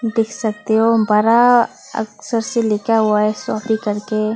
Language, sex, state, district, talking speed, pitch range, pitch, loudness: Hindi, female, Tripura, West Tripura, 165 wpm, 215-230 Hz, 220 Hz, -17 LUFS